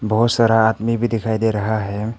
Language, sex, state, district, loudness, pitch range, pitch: Hindi, male, Arunachal Pradesh, Papum Pare, -18 LUFS, 110-115 Hz, 110 Hz